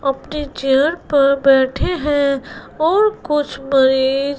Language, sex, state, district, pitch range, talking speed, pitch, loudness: Hindi, female, Gujarat, Gandhinagar, 270-300 Hz, 110 wpm, 280 Hz, -16 LUFS